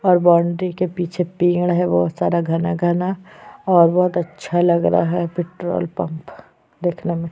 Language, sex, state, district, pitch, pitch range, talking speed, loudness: Hindi, female, Chhattisgarh, Sukma, 175 Hz, 170-180 Hz, 170 wpm, -19 LUFS